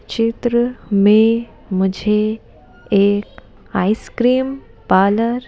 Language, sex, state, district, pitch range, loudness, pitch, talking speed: Hindi, female, Madhya Pradesh, Bhopal, 200-240 Hz, -17 LUFS, 220 Hz, 75 wpm